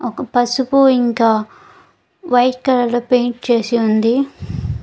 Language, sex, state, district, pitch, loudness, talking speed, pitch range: Telugu, female, Andhra Pradesh, Guntur, 245 Hz, -16 LUFS, 110 wpm, 235-255 Hz